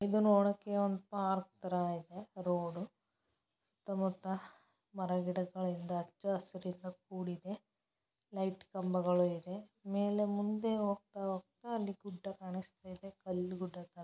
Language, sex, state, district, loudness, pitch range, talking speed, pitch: Kannada, female, Karnataka, Chamarajanagar, -38 LUFS, 180-200 Hz, 90 wpm, 190 Hz